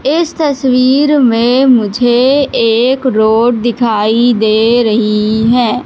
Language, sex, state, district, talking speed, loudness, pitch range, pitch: Hindi, female, Madhya Pradesh, Katni, 100 wpm, -10 LUFS, 225-260 Hz, 240 Hz